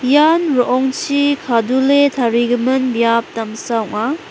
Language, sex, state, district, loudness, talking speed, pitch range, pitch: Garo, female, Meghalaya, West Garo Hills, -15 LUFS, 95 wpm, 230-280 Hz, 255 Hz